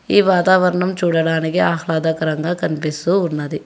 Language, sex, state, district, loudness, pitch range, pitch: Telugu, female, Telangana, Hyderabad, -17 LUFS, 160-180 Hz, 165 Hz